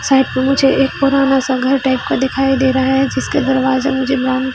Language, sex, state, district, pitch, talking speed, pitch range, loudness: Hindi, female, Chhattisgarh, Bilaspur, 265 Hz, 235 wpm, 260-270 Hz, -14 LUFS